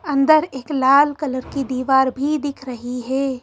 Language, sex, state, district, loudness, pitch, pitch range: Hindi, female, Madhya Pradesh, Bhopal, -19 LUFS, 270 Hz, 260-290 Hz